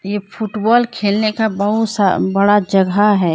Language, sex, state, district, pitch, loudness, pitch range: Hindi, female, Jharkhand, Deoghar, 205 Hz, -15 LUFS, 195-215 Hz